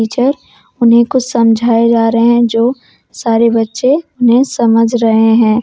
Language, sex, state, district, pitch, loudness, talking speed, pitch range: Hindi, female, Jharkhand, Deoghar, 235 Hz, -11 LUFS, 150 wpm, 230-245 Hz